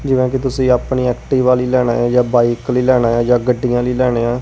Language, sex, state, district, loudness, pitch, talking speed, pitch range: Punjabi, female, Punjab, Kapurthala, -15 LUFS, 125 Hz, 230 wpm, 120-130 Hz